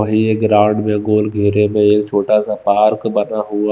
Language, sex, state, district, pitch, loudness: Hindi, male, Himachal Pradesh, Shimla, 105 Hz, -15 LUFS